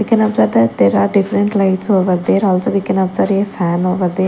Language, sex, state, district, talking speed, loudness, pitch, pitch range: English, female, Chandigarh, Chandigarh, 250 wpm, -14 LUFS, 190 Hz, 180-200 Hz